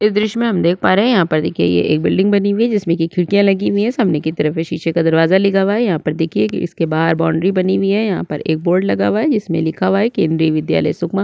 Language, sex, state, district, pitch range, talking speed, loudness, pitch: Hindi, female, Chhattisgarh, Sukma, 160-200 Hz, 300 wpm, -15 LUFS, 175 Hz